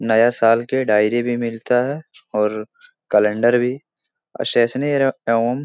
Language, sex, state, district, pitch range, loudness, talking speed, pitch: Hindi, male, Bihar, Jahanabad, 115-130 Hz, -18 LUFS, 140 wpm, 120 Hz